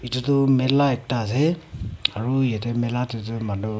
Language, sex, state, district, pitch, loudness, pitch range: Nagamese, female, Nagaland, Kohima, 120 Hz, -23 LUFS, 110-135 Hz